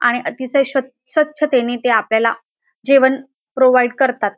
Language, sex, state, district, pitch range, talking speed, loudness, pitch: Marathi, female, Maharashtra, Dhule, 240-270 Hz, 110 wpm, -16 LUFS, 255 Hz